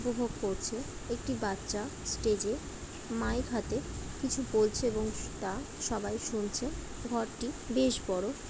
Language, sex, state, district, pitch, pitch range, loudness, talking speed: Bengali, female, West Bengal, Dakshin Dinajpur, 225 Hz, 215-250 Hz, -34 LUFS, 125 wpm